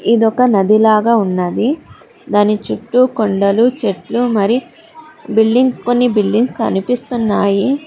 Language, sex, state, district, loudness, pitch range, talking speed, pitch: Telugu, female, Telangana, Hyderabad, -14 LUFS, 210-250 Hz, 100 wpm, 230 Hz